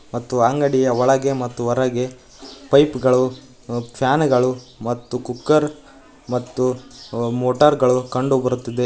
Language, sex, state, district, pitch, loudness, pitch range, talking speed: Kannada, male, Karnataka, Koppal, 125 Hz, -19 LUFS, 125-135 Hz, 110 wpm